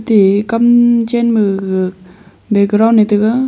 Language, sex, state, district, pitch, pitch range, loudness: Wancho, female, Arunachal Pradesh, Longding, 210 Hz, 195-230 Hz, -12 LUFS